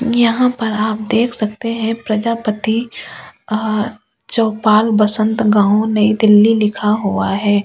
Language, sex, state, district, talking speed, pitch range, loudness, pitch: Hindi, female, Delhi, New Delhi, 135 wpm, 210-230 Hz, -15 LUFS, 215 Hz